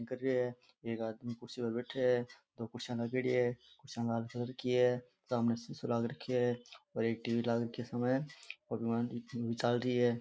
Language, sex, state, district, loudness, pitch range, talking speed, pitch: Rajasthani, male, Rajasthan, Nagaur, -36 LUFS, 115-125 Hz, 205 wpm, 120 Hz